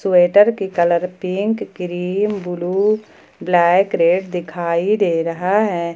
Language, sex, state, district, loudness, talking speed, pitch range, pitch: Hindi, female, Jharkhand, Ranchi, -17 LUFS, 120 wpm, 175-200 Hz, 180 Hz